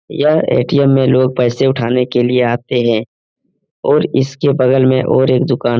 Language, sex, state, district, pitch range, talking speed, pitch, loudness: Hindi, male, Bihar, Lakhisarai, 125-135 Hz, 185 wpm, 130 Hz, -13 LUFS